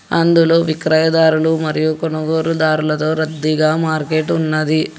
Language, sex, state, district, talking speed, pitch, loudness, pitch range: Telugu, male, Telangana, Hyderabad, 95 wpm, 160 Hz, -15 LUFS, 155-160 Hz